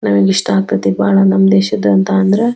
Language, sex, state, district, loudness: Kannada, female, Karnataka, Belgaum, -12 LUFS